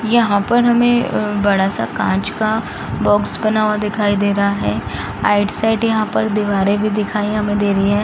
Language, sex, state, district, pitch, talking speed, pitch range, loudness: Hindi, female, Bihar, East Champaran, 210 Hz, 185 wpm, 200-215 Hz, -16 LUFS